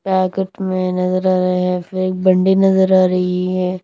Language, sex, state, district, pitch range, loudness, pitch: Hindi, female, Punjab, Kapurthala, 185-190 Hz, -16 LUFS, 185 Hz